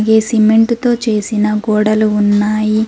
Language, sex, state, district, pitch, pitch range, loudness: Telugu, female, Telangana, Mahabubabad, 215 Hz, 210-220 Hz, -13 LUFS